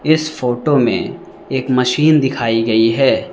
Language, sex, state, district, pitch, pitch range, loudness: Hindi, male, Arunachal Pradesh, Lower Dibang Valley, 130 Hz, 120-150 Hz, -15 LUFS